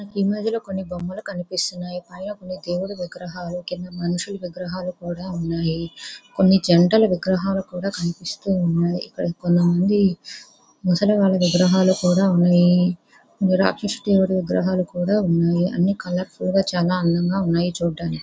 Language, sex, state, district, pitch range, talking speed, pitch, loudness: Telugu, female, Andhra Pradesh, Visakhapatnam, 175-190 Hz, 135 wpm, 180 Hz, -21 LUFS